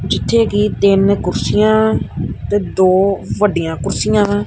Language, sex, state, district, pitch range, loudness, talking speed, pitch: Punjabi, male, Punjab, Kapurthala, 190-210 Hz, -15 LUFS, 120 wpm, 200 Hz